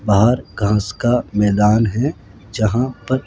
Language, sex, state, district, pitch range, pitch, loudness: Hindi, male, Rajasthan, Jaipur, 105-120 Hz, 110 Hz, -17 LUFS